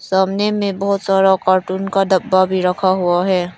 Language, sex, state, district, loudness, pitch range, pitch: Hindi, female, Arunachal Pradesh, Lower Dibang Valley, -16 LUFS, 185-195 Hz, 190 Hz